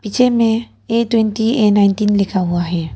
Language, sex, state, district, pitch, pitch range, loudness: Hindi, female, Arunachal Pradesh, Papum Pare, 210 Hz, 195-230 Hz, -15 LUFS